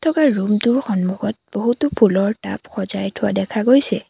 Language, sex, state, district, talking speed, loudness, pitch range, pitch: Assamese, female, Assam, Sonitpur, 145 wpm, -18 LUFS, 195-240 Hz, 215 Hz